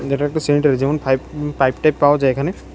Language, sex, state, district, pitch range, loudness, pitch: Bengali, male, Tripura, West Tripura, 135-150 Hz, -17 LUFS, 145 Hz